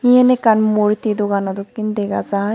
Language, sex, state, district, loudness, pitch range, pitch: Chakma, female, Tripura, Unakoti, -17 LUFS, 205-220 Hz, 215 Hz